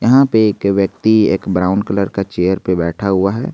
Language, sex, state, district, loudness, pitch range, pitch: Hindi, male, Jharkhand, Garhwa, -15 LUFS, 95-110 Hz, 100 Hz